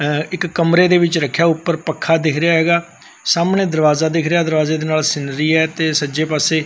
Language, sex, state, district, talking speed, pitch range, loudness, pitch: Punjabi, male, Punjab, Fazilka, 200 wpm, 155-170 Hz, -16 LUFS, 160 Hz